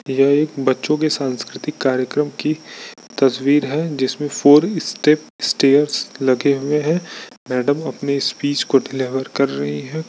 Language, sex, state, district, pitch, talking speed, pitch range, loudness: Hindi, male, Bihar, Bhagalpur, 140 Hz, 130 wpm, 130-150 Hz, -18 LUFS